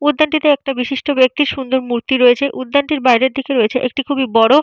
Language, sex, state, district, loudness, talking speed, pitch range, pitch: Bengali, female, Jharkhand, Jamtara, -15 LUFS, 180 wpm, 255-285 Hz, 270 Hz